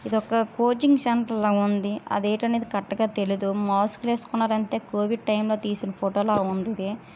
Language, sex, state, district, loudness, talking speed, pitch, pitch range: Telugu, female, Andhra Pradesh, Srikakulam, -24 LUFS, 135 wpm, 215 Hz, 205-230 Hz